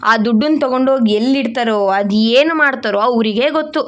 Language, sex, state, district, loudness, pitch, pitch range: Kannada, female, Karnataka, Shimoga, -14 LUFS, 250 Hz, 220-275 Hz